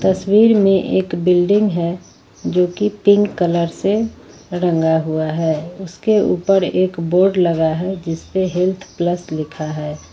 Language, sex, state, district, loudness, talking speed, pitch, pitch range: Hindi, female, Jharkhand, Ranchi, -17 LUFS, 130 wpm, 180 Hz, 165-195 Hz